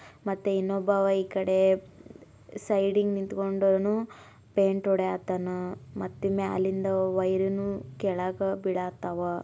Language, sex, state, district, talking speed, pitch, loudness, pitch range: Kannada, female, Karnataka, Belgaum, 100 wpm, 195 Hz, -28 LUFS, 190-195 Hz